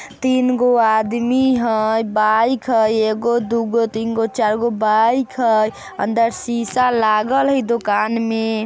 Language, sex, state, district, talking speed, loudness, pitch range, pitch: Bajjika, female, Bihar, Vaishali, 140 wpm, -17 LUFS, 220-240 Hz, 230 Hz